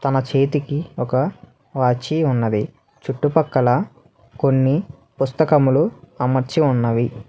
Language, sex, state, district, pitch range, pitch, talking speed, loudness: Telugu, male, Telangana, Hyderabad, 125-150 Hz, 135 Hz, 80 wpm, -19 LUFS